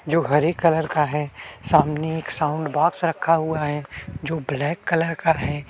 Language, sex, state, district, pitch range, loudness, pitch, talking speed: Hindi, male, Chhattisgarh, Kabirdham, 150-165 Hz, -22 LUFS, 155 Hz, 180 wpm